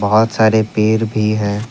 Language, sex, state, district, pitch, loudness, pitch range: Hindi, male, Assam, Kamrup Metropolitan, 110 Hz, -15 LUFS, 105-110 Hz